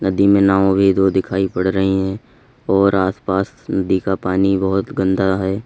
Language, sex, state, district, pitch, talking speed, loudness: Hindi, male, Uttar Pradesh, Lalitpur, 95 Hz, 190 wpm, -17 LUFS